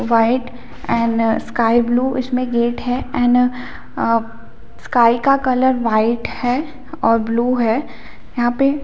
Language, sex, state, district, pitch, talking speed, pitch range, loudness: Hindi, female, Chhattisgarh, Bilaspur, 245 Hz, 135 wpm, 230-255 Hz, -17 LUFS